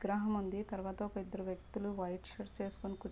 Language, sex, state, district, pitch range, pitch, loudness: Telugu, female, Andhra Pradesh, Guntur, 190-205 Hz, 200 Hz, -41 LUFS